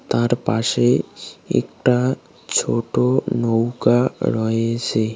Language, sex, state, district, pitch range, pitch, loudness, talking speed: Bengali, male, West Bengal, Cooch Behar, 115-125 Hz, 120 Hz, -19 LUFS, 70 wpm